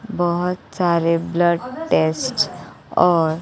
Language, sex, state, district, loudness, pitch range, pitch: Hindi, female, Bihar, West Champaran, -19 LUFS, 165-175 Hz, 170 Hz